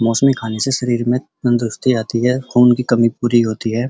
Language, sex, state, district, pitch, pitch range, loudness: Hindi, male, Uttar Pradesh, Muzaffarnagar, 120 Hz, 115-125 Hz, -16 LUFS